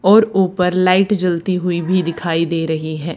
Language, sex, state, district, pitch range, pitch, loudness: Hindi, female, Haryana, Charkhi Dadri, 165-185 Hz, 180 Hz, -16 LUFS